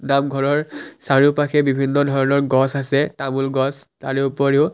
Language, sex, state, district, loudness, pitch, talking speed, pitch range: Assamese, male, Assam, Kamrup Metropolitan, -19 LUFS, 140 Hz, 115 wpm, 135-145 Hz